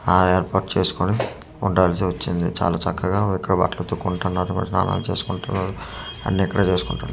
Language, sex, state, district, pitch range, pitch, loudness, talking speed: Telugu, male, Andhra Pradesh, Manyam, 90-95 Hz, 95 Hz, -22 LUFS, 135 wpm